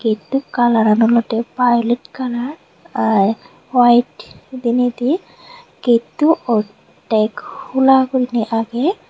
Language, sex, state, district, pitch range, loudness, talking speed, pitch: Chakma, female, Tripura, Unakoti, 225-260 Hz, -16 LUFS, 85 wpm, 240 Hz